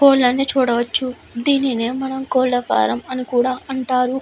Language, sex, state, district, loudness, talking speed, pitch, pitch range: Telugu, female, Andhra Pradesh, Visakhapatnam, -19 LUFS, 115 wpm, 255 Hz, 245-265 Hz